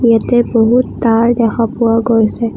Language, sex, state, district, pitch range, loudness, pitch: Assamese, female, Assam, Kamrup Metropolitan, 225-240 Hz, -12 LUFS, 230 Hz